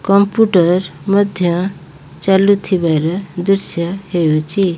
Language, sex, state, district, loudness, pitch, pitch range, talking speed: Odia, female, Odisha, Malkangiri, -15 LUFS, 185 Hz, 165-195 Hz, 65 wpm